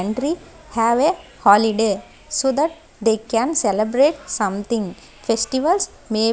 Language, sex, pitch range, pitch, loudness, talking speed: English, female, 220-290 Hz, 230 Hz, -20 LUFS, 125 wpm